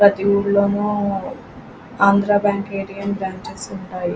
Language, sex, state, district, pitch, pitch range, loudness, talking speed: Telugu, female, Andhra Pradesh, Krishna, 200 Hz, 195-205 Hz, -19 LUFS, 130 wpm